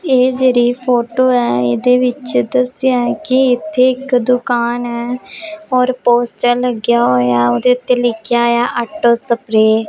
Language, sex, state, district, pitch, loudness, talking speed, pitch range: Punjabi, female, Punjab, Pathankot, 245 Hz, -14 LUFS, 145 wpm, 235-255 Hz